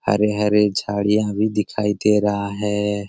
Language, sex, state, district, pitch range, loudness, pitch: Hindi, male, Bihar, Jamui, 100-105 Hz, -20 LUFS, 105 Hz